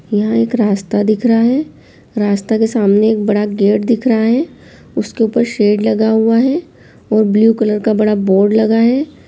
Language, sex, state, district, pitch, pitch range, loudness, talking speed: Hindi, female, Chhattisgarh, Rajnandgaon, 220 Hz, 210-230 Hz, -13 LUFS, 185 wpm